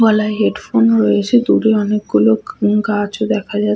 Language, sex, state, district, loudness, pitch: Bengali, female, West Bengal, Paschim Medinipur, -15 LUFS, 210 Hz